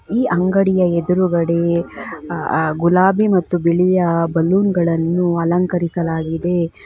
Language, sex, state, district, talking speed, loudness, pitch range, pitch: Kannada, female, Karnataka, Bangalore, 80 wpm, -17 LUFS, 170-180 Hz, 175 Hz